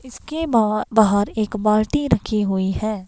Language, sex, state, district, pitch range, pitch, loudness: Hindi, female, Himachal Pradesh, Shimla, 210-230 Hz, 215 Hz, -19 LUFS